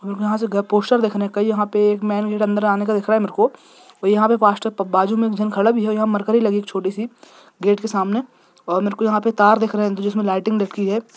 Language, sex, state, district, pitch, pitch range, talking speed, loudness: Hindi, male, Jharkhand, Jamtara, 210 Hz, 200-220 Hz, 260 wpm, -19 LUFS